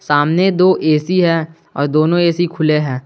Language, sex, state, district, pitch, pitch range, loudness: Hindi, male, Jharkhand, Garhwa, 165 Hz, 150-175 Hz, -14 LUFS